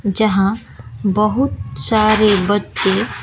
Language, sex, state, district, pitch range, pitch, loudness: Hindi, female, Bihar, West Champaran, 195-215 Hz, 205 Hz, -15 LUFS